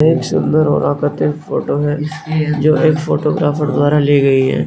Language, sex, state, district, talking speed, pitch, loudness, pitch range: Hindi, male, Bihar, Kishanganj, 165 wpm, 150 Hz, -15 LUFS, 135-155 Hz